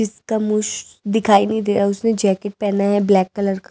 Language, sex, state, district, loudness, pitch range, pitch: Hindi, female, Delhi, New Delhi, -18 LUFS, 200-215 Hz, 205 Hz